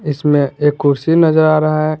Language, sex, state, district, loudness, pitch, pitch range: Hindi, male, Jharkhand, Garhwa, -13 LUFS, 155 Hz, 145-155 Hz